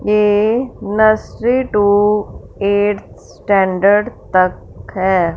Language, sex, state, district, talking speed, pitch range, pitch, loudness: Hindi, female, Punjab, Fazilka, 80 wpm, 195-215 Hz, 205 Hz, -15 LUFS